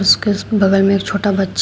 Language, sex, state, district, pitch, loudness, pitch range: Hindi, female, Uttar Pradesh, Shamli, 195 Hz, -15 LUFS, 195-205 Hz